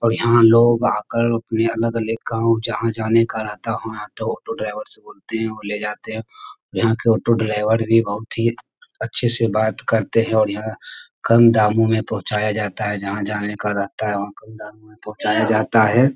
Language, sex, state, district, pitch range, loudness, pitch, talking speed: Hindi, male, Bihar, Jamui, 105-115 Hz, -19 LUFS, 110 Hz, 200 wpm